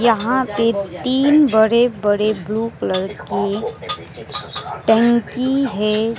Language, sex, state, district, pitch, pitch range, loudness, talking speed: Hindi, female, West Bengal, Alipurduar, 225 Hz, 210-240 Hz, -18 LUFS, 95 wpm